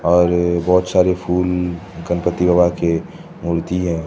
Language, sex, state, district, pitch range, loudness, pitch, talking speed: Hindi, male, Odisha, Khordha, 85-90 Hz, -17 LUFS, 85 Hz, 135 wpm